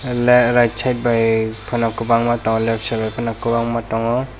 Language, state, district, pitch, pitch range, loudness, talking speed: Kokborok, Tripura, West Tripura, 115 Hz, 115-120 Hz, -18 LUFS, 175 wpm